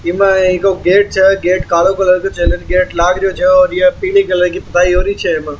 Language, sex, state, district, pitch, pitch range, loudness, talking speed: Marwari, male, Rajasthan, Churu, 185 Hz, 180-195 Hz, -12 LUFS, 195 wpm